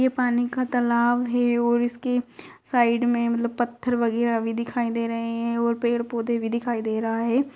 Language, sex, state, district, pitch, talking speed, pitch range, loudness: Magahi, female, Bihar, Gaya, 235 Hz, 190 wpm, 235-245 Hz, -24 LUFS